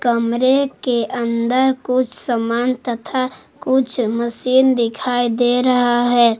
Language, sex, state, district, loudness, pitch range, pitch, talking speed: Hindi, female, Jharkhand, Garhwa, -17 LUFS, 235-255 Hz, 245 Hz, 115 wpm